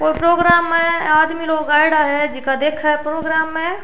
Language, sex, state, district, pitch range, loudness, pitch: Rajasthani, female, Rajasthan, Churu, 300-335 Hz, -16 LUFS, 315 Hz